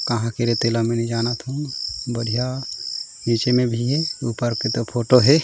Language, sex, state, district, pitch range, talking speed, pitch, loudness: Chhattisgarhi, male, Chhattisgarh, Raigarh, 115-130 Hz, 200 wpm, 120 Hz, -22 LUFS